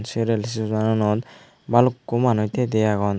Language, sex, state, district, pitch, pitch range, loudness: Chakma, male, Tripura, Unakoti, 110 Hz, 105-120 Hz, -21 LUFS